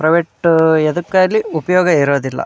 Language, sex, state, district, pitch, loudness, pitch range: Kannada, male, Karnataka, Dharwad, 165 Hz, -14 LUFS, 155-180 Hz